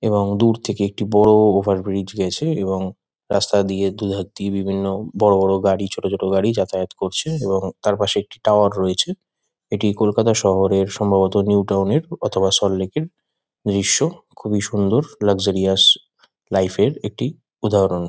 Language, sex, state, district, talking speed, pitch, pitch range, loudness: Bengali, male, West Bengal, Kolkata, 155 wpm, 100 Hz, 95-105 Hz, -19 LUFS